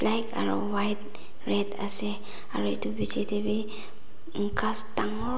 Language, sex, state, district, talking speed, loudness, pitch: Nagamese, female, Nagaland, Dimapur, 120 wpm, -23 LUFS, 205 Hz